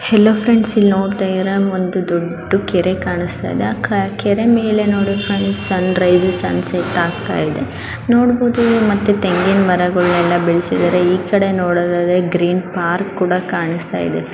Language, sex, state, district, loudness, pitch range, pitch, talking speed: Kannada, female, Karnataka, Dharwad, -15 LUFS, 175-200 Hz, 185 Hz, 140 wpm